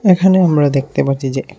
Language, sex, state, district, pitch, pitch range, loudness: Bengali, male, Tripura, West Tripura, 145 Hz, 135-185 Hz, -14 LUFS